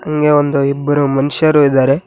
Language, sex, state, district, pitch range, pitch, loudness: Kannada, male, Karnataka, Koppal, 140-150 Hz, 145 Hz, -13 LUFS